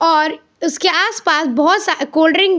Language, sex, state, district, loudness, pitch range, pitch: Hindi, female, Bihar, Saharsa, -15 LUFS, 310-365 Hz, 330 Hz